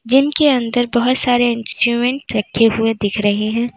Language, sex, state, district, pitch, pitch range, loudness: Hindi, female, Uttar Pradesh, Lalitpur, 235 Hz, 225-250 Hz, -16 LUFS